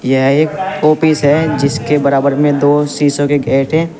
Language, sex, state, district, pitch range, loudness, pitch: Hindi, male, Uttar Pradesh, Saharanpur, 140-155 Hz, -12 LUFS, 145 Hz